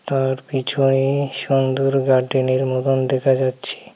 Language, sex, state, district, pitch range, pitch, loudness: Bengali, male, West Bengal, Alipurduar, 130-135 Hz, 135 Hz, -17 LUFS